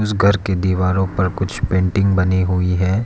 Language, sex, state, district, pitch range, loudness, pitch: Hindi, male, Arunachal Pradesh, Lower Dibang Valley, 90-100 Hz, -18 LUFS, 95 Hz